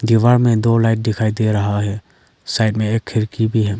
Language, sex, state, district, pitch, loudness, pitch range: Hindi, male, Arunachal Pradesh, Lower Dibang Valley, 110 Hz, -17 LUFS, 110-115 Hz